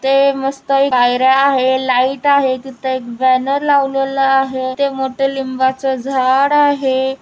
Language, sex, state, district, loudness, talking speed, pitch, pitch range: Marathi, female, Maharashtra, Chandrapur, -15 LUFS, 135 wpm, 270 Hz, 260-275 Hz